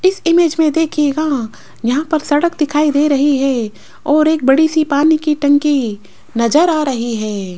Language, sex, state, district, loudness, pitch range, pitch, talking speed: Hindi, female, Rajasthan, Jaipur, -14 LUFS, 265-315 Hz, 295 Hz, 175 wpm